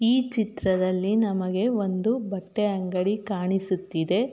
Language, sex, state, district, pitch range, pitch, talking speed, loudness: Kannada, female, Karnataka, Mysore, 185-220 Hz, 195 Hz, 95 wpm, -25 LUFS